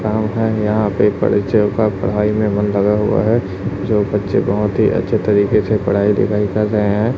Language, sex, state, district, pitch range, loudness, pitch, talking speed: Hindi, male, Chhattisgarh, Raipur, 100-110 Hz, -16 LUFS, 105 Hz, 185 wpm